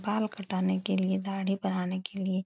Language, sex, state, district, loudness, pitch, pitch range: Hindi, female, Uttar Pradesh, Etah, -31 LUFS, 190 Hz, 190-195 Hz